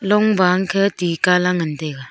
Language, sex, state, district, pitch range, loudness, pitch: Wancho, female, Arunachal Pradesh, Longding, 170-195 Hz, -17 LUFS, 180 Hz